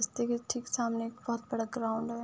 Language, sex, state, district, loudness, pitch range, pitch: Hindi, female, Uttar Pradesh, Budaun, -34 LUFS, 225-240 Hz, 235 Hz